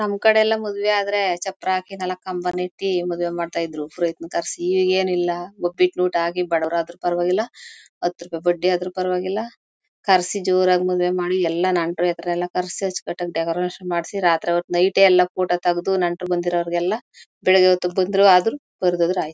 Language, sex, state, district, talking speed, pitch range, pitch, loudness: Kannada, female, Karnataka, Mysore, 150 wpm, 175-185 Hz, 180 Hz, -21 LUFS